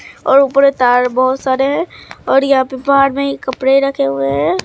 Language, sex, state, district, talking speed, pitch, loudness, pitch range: Hindi, male, Bihar, Katihar, 220 wpm, 270 Hz, -13 LUFS, 260-275 Hz